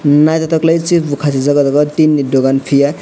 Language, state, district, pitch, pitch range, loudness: Kokborok, Tripura, West Tripura, 145 Hz, 140-160 Hz, -12 LUFS